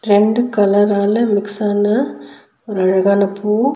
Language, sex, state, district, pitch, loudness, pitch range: Tamil, female, Tamil Nadu, Nilgiris, 205 Hz, -15 LUFS, 200-220 Hz